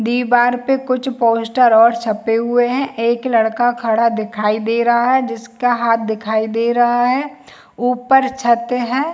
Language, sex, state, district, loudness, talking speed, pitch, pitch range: Hindi, female, Chhattisgarh, Bilaspur, -16 LUFS, 160 wpm, 240 Hz, 230-250 Hz